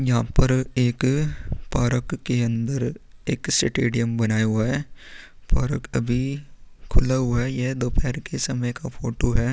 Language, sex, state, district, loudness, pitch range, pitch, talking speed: Hindi, male, Chhattisgarh, Korba, -24 LUFS, 120-130 Hz, 125 Hz, 145 wpm